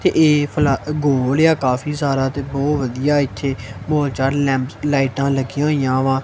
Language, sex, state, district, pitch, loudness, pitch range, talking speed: Punjabi, male, Punjab, Kapurthala, 140 Hz, -18 LUFS, 135-145 Hz, 175 wpm